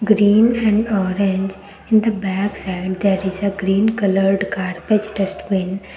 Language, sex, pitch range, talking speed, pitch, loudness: English, female, 190-210 Hz, 130 wpm, 195 Hz, -18 LUFS